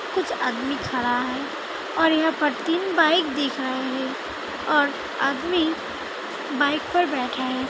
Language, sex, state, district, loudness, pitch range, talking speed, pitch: Hindi, female, Uttar Pradesh, Hamirpur, -23 LUFS, 260-325 Hz, 150 wpm, 290 Hz